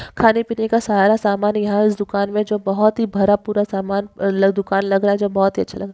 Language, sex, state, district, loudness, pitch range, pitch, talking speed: Hindi, female, Maharashtra, Dhule, -18 LUFS, 195-210 Hz, 205 Hz, 230 wpm